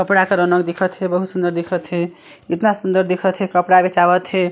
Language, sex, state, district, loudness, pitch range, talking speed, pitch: Chhattisgarhi, male, Chhattisgarh, Sarguja, -17 LUFS, 180-190 Hz, 215 wpm, 180 Hz